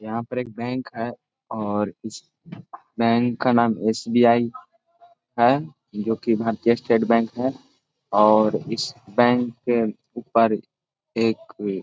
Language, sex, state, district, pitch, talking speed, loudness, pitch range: Hindi, male, Chhattisgarh, Korba, 115 Hz, 130 wpm, -22 LUFS, 110-125 Hz